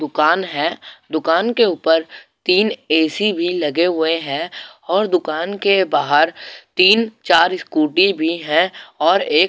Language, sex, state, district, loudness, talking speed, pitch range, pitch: Hindi, male, Goa, North and South Goa, -17 LUFS, 145 wpm, 160-215 Hz, 175 Hz